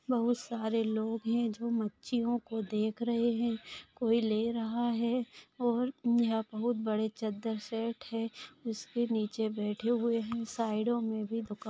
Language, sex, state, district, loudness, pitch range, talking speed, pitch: Hindi, female, Maharashtra, Sindhudurg, -33 LUFS, 220-235 Hz, 165 wpm, 230 Hz